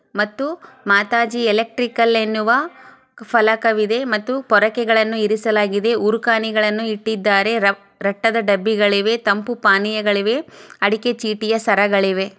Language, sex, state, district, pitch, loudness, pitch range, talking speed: Kannada, female, Karnataka, Chamarajanagar, 220 Hz, -17 LUFS, 205-230 Hz, 85 wpm